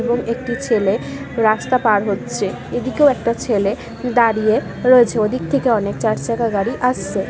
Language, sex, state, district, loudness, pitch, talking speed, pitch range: Bengali, female, West Bengal, Kolkata, -18 LUFS, 230 Hz, 140 wpm, 215-250 Hz